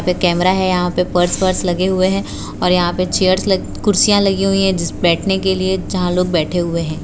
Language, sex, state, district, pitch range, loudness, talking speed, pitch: Hindi, female, Gujarat, Valsad, 175-190 Hz, -16 LUFS, 230 wpm, 185 Hz